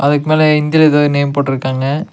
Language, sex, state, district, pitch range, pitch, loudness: Tamil, male, Tamil Nadu, Nilgiris, 140-155 Hz, 145 Hz, -13 LUFS